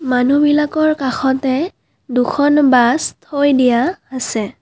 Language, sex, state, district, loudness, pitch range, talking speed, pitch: Assamese, female, Assam, Kamrup Metropolitan, -15 LUFS, 250-295 Hz, 90 wpm, 265 Hz